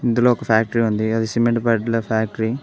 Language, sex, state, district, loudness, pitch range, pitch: Telugu, male, Telangana, Mahabubabad, -19 LUFS, 110-120 Hz, 115 Hz